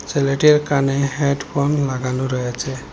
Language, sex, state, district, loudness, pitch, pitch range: Bengali, male, Assam, Hailakandi, -19 LUFS, 140 Hz, 130-140 Hz